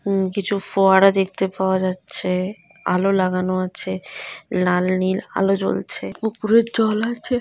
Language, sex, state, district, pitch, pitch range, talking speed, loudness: Bengali, female, West Bengal, North 24 Parganas, 190 Hz, 185-200 Hz, 130 wpm, -20 LUFS